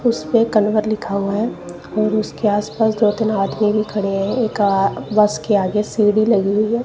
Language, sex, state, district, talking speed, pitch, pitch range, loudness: Hindi, female, Punjab, Kapurthala, 200 wpm, 210 Hz, 205-220 Hz, -18 LUFS